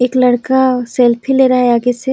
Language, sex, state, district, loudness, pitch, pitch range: Hindi, female, Chhattisgarh, Sarguja, -12 LUFS, 250 Hz, 245-260 Hz